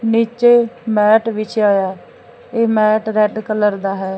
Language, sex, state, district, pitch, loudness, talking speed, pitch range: Punjabi, female, Punjab, Fazilka, 215 Hz, -15 LUFS, 160 wpm, 210-230 Hz